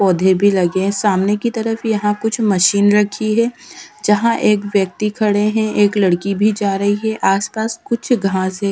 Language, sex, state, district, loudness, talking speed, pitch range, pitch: Hindi, female, Punjab, Fazilka, -16 LUFS, 185 wpm, 195-220 Hz, 210 Hz